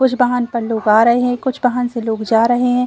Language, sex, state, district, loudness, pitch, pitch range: Hindi, female, Bihar, Saran, -16 LUFS, 245 Hz, 225-250 Hz